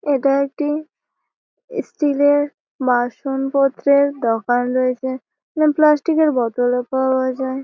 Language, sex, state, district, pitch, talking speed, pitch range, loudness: Bengali, female, West Bengal, Malda, 275 Hz, 100 wpm, 255-300 Hz, -18 LUFS